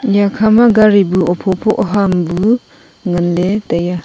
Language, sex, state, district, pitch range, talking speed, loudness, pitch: Wancho, female, Arunachal Pradesh, Longding, 180-215 Hz, 190 wpm, -13 LUFS, 195 Hz